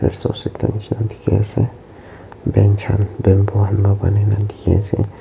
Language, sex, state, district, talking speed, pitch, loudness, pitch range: Nagamese, male, Nagaland, Kohima, 150 wpm, 105 Hz, -17 LUFS, 100-110 Hz